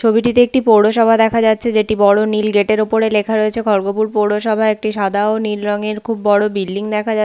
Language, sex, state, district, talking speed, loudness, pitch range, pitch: Bengali, female, West Bengal, Paschim Medinipur, 215 wpm, -15 LUFS, 210-220 Hz, 215 Hz